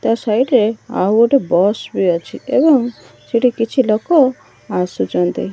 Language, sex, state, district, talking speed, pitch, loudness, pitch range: Odia, female, Odisha, Malkangiri, 140 wpm, 225 Hz, -16 LUFS, 180-250 Hz